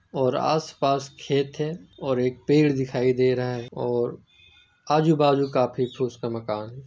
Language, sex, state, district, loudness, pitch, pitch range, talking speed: Hindi, male, Bihar, Jamui, -24 LUFS, 135 Hz, 125-145 Hz, 155 wpm